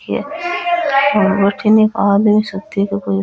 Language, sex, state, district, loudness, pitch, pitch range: Rajasthani, female, Rajasthan, Nagaur, -15 LUFS, 210 Hz, 200-275 Hz